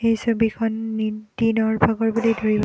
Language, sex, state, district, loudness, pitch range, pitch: Assamese, female, Assam, Kamrup Metropolitan, -21 LUFS, 220-225 Hz, 225 Hz